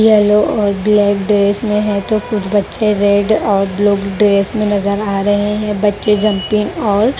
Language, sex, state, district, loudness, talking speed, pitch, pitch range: Hindi, female, Haryana, Rohtak, -14 LUFS, 175 wpm, 205 Hz, 200-210 Hz